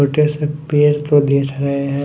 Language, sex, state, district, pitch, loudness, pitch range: Hindi, male, Chhattisgarh, Raipur, 145 Hz, -16 LUFS, 140-150 Hz